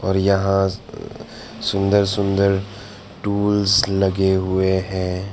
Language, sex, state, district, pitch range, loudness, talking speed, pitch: Hindi, male, Arunachal Pradesh, Papum Pare, 95-100 Hz, -19 LUFS, 90 wpm, 95 Hz